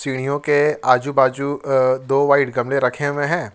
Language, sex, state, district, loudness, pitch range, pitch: Hindi, male, Jharkhand, Ranchi, -18 LUFS, 130-145 Hz, 140 Hz